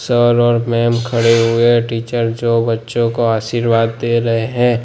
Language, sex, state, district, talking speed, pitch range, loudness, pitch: Hindi, male, Gujarat, Gandhinagar, 160 wpm, 115-120 Hz, -15 LUFS, 115 Hz